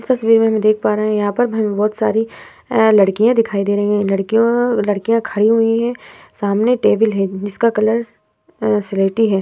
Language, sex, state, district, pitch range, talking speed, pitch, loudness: Hindi, female, Bihar, Vaishali, 205-230 Hz, 210 wpm, 215 Hz, -16 LUFS